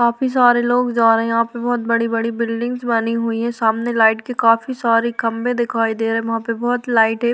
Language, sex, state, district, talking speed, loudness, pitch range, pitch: Hindi, female, Uttar Pradesh, Varanasi, 255 wpm, -18 LUFS, 230-240 Hz, 230 Hz